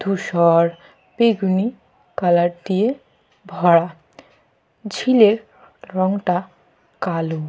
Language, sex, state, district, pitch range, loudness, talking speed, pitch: Bengali, female, Jharkhand, Jamtara, 170-210 Hz, -19 LUFS, 65 wpm, 185 Hz